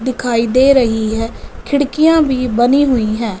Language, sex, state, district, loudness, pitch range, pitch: Hindi, female, Punjab, Fazilka, -13 LUFS, 230-275 Hz, 250 Hz